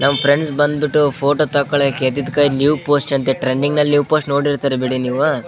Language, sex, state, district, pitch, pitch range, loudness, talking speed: Kannada, male, Karnataka, Bellary, 140 Hz, 135-145 Hz, -16 LUFS, 195 wpm